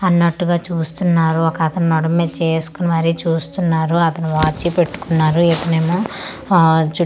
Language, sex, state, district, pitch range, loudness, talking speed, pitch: Telugu, female, Andhra Pradesh, Manyam, 160-170 Hz, -17 LUFS, 135 wpm, 165 Hz